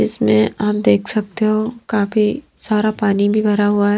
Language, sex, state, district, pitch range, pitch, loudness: Hindi, female, Himachal Pradesh, Shimla, 205-215 Hz, 210 Hz, -17 LUFS